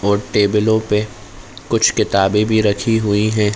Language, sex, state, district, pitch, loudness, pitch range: Hindi, male, Chhattisgarh, Bilaspur, 105 Hz, -16 LUFS, 105-110 Hz